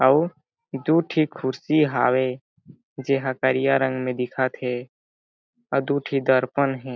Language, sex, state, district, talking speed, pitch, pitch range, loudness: Chhattisgarhi, male, Chhattisgarh, Jashpur, 140 wpm, 135 Hz, 130-150 Hz, -23 LUFS